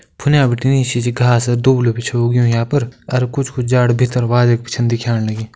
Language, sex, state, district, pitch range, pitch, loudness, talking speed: Kumaoni, male, Uttarakhand, Uttarkashi, 120-125 Hz, 120 Hz, -15 LUFS, 170 wpm